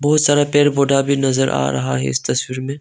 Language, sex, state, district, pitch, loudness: Hindi, male, Arunachal Pradesh, Longding, 135 Hz, -17 LUFS